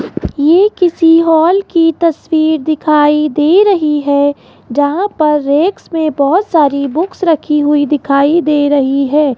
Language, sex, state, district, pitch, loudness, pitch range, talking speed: Hindi, female, Rajasthan, Jaipur, 305 Hz, -11 LUFS, 290-335 Hz, 140 wpm